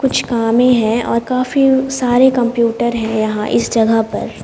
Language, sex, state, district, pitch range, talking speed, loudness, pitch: Hindi, female, Haryana, Jhajjar, 225-255 Hz, 160 wpm, -14 LUFS, 240 Hz